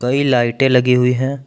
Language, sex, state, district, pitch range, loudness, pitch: Hindi, male, Jharkhand, Palamu, 125-135 Hz, -15 LUFS, 125 Hz